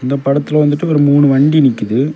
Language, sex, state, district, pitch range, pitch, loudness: Tamil, male, Tamil Nadu, Kanyakumari, 135-150 Hz, 145 Hz, -12 LUFS